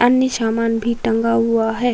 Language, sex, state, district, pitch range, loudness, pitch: Hindi, female, Uttar Pradesh, Varanasi, 225-240 Hz, -18 LUFS, 230 Hz